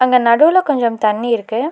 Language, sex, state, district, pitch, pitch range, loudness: Tamil, female, Tamil Nadu, Nilgiris, 235 Hz, 230-280 Hz, -14 LUFS